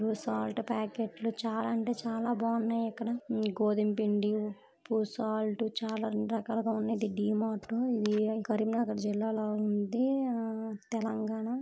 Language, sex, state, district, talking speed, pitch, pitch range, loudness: Telugu, female, Telangana, Karimnagar, 115 wpm, 220 Hz, 215-230 Hz, -32 LUFS